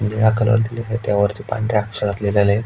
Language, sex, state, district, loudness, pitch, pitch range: Marathi, male, Maharashtra, Aurangabad, -19 LUFS, 105 Hz, 105-110 Hz